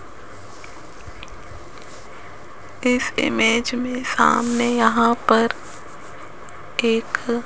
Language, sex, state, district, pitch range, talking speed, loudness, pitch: Hindi, female, Rajasthan, Jaipur, 225-240 Hz, 55 wpm, -19 LUFS, 230 Hz